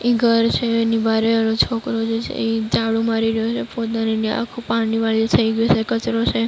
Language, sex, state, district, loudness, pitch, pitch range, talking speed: Gujarati, female, Maharashtra, Mumbai Suburban, -19 LUFS, 225 Hz, 225-230 Hz, 215 wpm